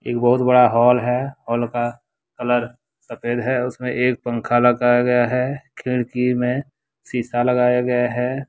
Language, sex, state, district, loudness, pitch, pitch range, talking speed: Hindi, male, Jharkhand, Deoghar, -19 LUFS, 125 Hz, 120-125 Hz, 150 wpm